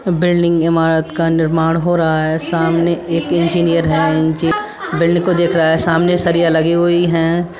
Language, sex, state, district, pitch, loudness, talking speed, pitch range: Hindi, female, Uttar Pradesh, Budaun, 170 Hz, -14 LUFS, 175 wpm, 165-170 Hz